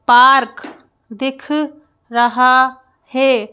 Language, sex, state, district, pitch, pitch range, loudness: Hindi, female, Madhya Pradesh, Bhopal, 260 Hz, 245-270 Hz, -14 LUFS